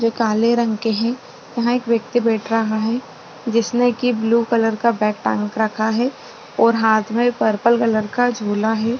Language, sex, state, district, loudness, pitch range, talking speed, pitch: Hindi, female, Maharashtra, Chandrapur, -18 LUFS, 220-235 Hz, 185 wpm, 230 Hz